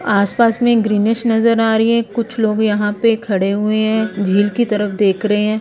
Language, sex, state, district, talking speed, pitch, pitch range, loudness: Hindi, female, Punjab, Kapurthala, 215 wpm, 215 Hz, 205-230 Hz, -15 LUFS